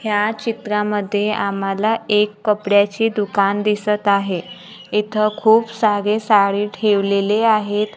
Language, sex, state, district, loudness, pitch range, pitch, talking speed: Marathi, female, Maharashtra, Gondia, -18 LUFS, 205-215 Hz, 210 Hz, 105 wpm